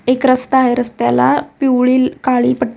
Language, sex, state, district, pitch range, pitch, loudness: Marathi, female, Maharashtra, Sindhudurg, 160-255 Hz, 250 Hz, -14 LUFS